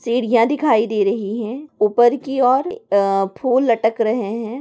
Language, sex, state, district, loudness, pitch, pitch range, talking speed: Hindi, female, Chhattisgarh, Raigarh, -18 LUFS, 230 Hz, 220-260 Hz, 170 wpm